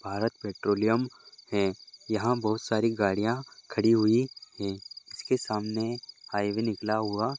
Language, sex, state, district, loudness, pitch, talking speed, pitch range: Hindi, male, Goa, North and South Goa, -29 LUFS, 110 Hz, 140 wpm, 105-115 Hz